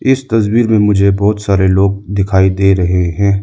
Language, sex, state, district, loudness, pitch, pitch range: Hindi, male, Arunachal Pradesh, Lower Dibang Valley, -12 LUFS, 100 Hz, 95-105 Hz